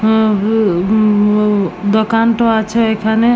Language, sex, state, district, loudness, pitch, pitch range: Bengali, female, West Bengal, Jalpaiguri, -13 LUFS, 220 Hz, 210-225 Hz